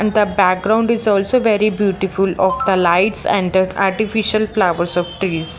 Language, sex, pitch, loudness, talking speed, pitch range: English, female, 195 Hz, -16 LUFS, 170 wpm, 185-215 Hz